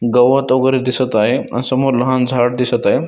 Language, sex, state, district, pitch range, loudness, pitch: Marathi, male, Maharashtra, Dhule, 120-130 Hz, -15 LUFS, 125 Hz